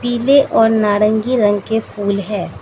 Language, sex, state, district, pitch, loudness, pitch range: Hindi, female, Manipur, Imphal West, 220 Hz, -15 LUFS, 205-240 Hz